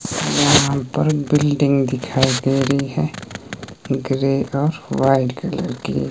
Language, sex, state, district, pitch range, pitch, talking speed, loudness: Hindi, male, Himachal Pradesh, Shimla, 130-145 Hz, 135 Hz, 120 wpm, -18 LUFS